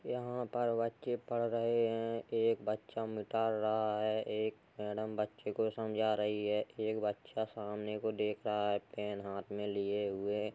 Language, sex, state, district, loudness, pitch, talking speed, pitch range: Hindi, male, Uttar Pradesh, Hamirpur, -37 LUFS, 110 Hz, 175 wpm, 105-115 Hz